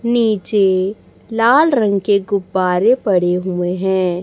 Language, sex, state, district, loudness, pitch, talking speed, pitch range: Hindi, female, Chhattisgarh, Raipur, -15 LUFS, 195 Hz, 115 wpm, 185-220 Hz